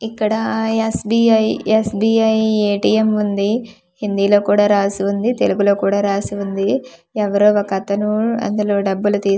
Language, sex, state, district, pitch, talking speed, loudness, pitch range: Telugu, female, Andhra Pradesh, Manyam, 205 Hz, 115 wpm, -17 LUFS, 200-220 Hz